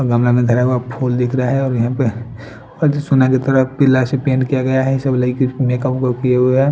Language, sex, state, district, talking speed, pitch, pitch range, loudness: Hindi, male, Punjab, Fazilka, 260 wpm, 130 Hz, 125-135 Hz, -16 LUFS